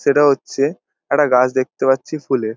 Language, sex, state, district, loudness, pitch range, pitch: Bengali, male, West Bengal, Dakshin Dinajpur, -17 LUFS, 130-145 Hz, 135 Hz